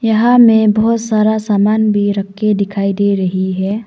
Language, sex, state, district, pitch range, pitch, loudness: Hindi, female, Arunachal Pradesh, Longding, 200-220 Hz, 210 Hz, -13 LUFS